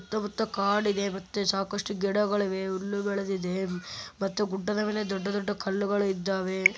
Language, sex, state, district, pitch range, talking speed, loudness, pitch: Kannada, male, Karnataka, Bellary, 190-205 Hz, 125 wpm, -29 LUFS, 200 Hz